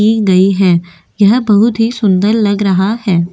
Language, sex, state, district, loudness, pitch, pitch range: Hindi, female, Goa, North and South Goa, -11 LUFS, 200 Hz, 185-220 Hz